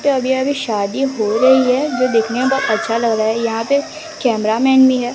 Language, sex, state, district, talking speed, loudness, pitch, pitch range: Hindi, female, Odisha, Sambalpur, 220 wpm, -16 LUFS, 250 Hz, 225-270 Hz